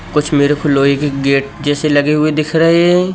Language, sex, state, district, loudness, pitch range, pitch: Hindi, male, Madhya Pradesh, Katni, -13 LUFS, 145-155 Hz, 150 Hz